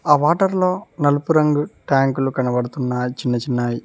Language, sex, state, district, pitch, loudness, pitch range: Telugu, male, Telangana, Mahabubabad, 135 Hz, -19 LUFS, 125-155 Hz